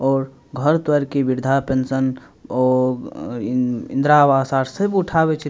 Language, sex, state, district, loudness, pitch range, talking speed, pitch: Maithili, male, Bihar, Madhepura, -19 LUFS, 130-150 Hz, 130 wpm, 135 Hz